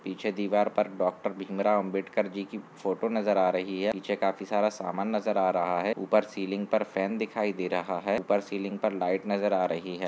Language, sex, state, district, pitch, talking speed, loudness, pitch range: Hindi, male, Chhattisgarh, Sarguja, 100 Hz, 220 wpm, -29 LUFS, 95-105 Hz